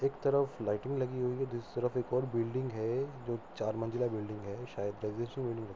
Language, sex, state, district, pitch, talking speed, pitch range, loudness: Hindi, male, Uttar Pradesh, Hamirpur, 120 Hz, 185 wpm, 110-130 Hz, -36 LUFS